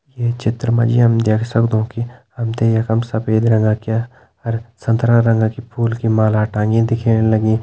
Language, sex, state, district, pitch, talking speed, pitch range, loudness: Hindi, male, Uttarakhand, Tehri Garhwal, 115 Hz, 190 wpm, 110-115 Hz, -17 LUFS